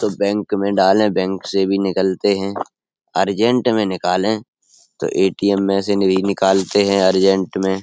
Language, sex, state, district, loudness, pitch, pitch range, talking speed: Hindi, male, Uttar Pradesh, Etah, -17 LUFS, 100 Hz, 95-100 Hz, 160 wpm